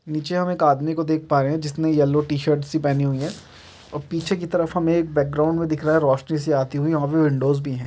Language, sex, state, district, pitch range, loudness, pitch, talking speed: Hindi, male, Chhattisgarh, Rajnandgaon, 140-160 Hz, -21 LUFS, 150 Hz, 275 wpm